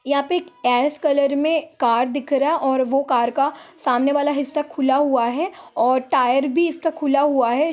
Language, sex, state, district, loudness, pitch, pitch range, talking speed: Hindi, female, Jharkhand, Sahebganj, -20 LUFS, 280 Hz, 260-310 Hz, 195 wpm